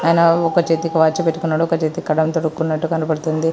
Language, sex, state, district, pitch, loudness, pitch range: Telugu, female, Andhra Pradesh, Srikakulam, 165 Hz, -18 LUFS, 160-165 Hz